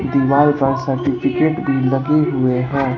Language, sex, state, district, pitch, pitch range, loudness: Hindi, male, Bihar, Katihar, 135 Hz, 130-145 Hz, -17 LUFS